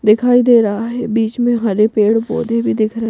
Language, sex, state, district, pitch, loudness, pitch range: Hindi, female, Madhya Pradesh, Bhopal, 225 Hz, -14 LUFS, 215-235 Hz